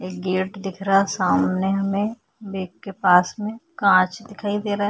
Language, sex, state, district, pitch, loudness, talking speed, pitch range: Hindi, female, Chhattisgarh, Kabirdham, 195 Hz, -21 LUFS, 185 wpm, 185-205 Hz